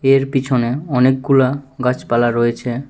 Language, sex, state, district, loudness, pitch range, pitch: Bengali, male, Tripura, West Tripura, -16 LUFS, 120-135 Hz, 130 Hz